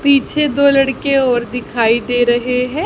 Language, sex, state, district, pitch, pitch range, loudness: Hindi, female, Haryana, Charkhi Dadri, 255 Hz, 245-280 Hz, -14 LUFS